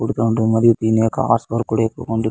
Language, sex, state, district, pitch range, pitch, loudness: Telugu, male, Andhra Pradesh, Anantapur, 110-115 Hz, 115 Hz, -17 LUFS